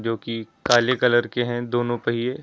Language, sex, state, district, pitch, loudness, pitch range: Hindi, male, Uttar Pradesh, Lucknow, 120 Hz, -22 LUFS, 115-120 Hz